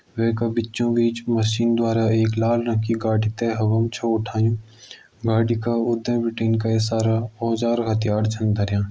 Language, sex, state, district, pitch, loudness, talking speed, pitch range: Garhwali, male, Uttarakhand, Uttarkashi, 115 Hz, -22 LUFS, 175 wpm, 110-115 Hz